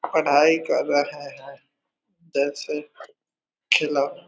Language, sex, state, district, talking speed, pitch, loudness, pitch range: Hindi, male, Bihar, East Champaran, 100 wpm, 145 Hz, -22 LUFS, 140-160 Hz